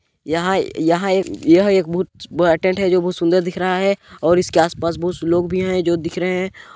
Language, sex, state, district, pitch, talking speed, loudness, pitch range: Hindi, male, Chhattisgarh, Balrampur, 180 Hz, 220 wpm, -18 LUFS, 170-185 Hz